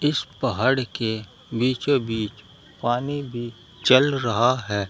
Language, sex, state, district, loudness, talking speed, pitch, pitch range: Hindi, male, Uttar Pradesh, Saharanpur, -23 LUFS, 120 wpm, 125 Hz, 115-135 Hz